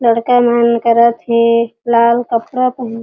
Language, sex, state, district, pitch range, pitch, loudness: Chhattisgarhi, female, Chhattisgarh, Jashpur, 230-240 Hz, 235 Hz, -13 LUFS